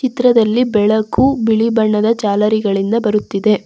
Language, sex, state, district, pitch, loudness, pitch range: Kannada, female, Karnataka, Bangalore, 220 Hz, -14 LUFS, 210-230 Hz